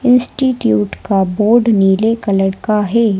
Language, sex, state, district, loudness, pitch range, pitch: Hindi, female, Madhya Pradesh, Bhopal, -14 LUFS, 195-235 Hz, 215 Hz